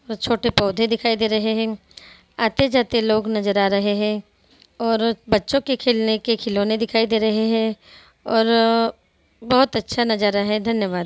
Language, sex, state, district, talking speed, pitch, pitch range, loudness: Hindi, female, Bihar, Araria, 150 wpm, 225 Hz, 215-230 Hz, -20 LUFS